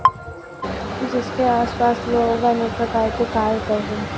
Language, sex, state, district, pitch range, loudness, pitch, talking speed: Hindi, female, Chhattisgarh, Raipur, 225-240 Hz, -20 LUFS, 235 Hz, 160 wpm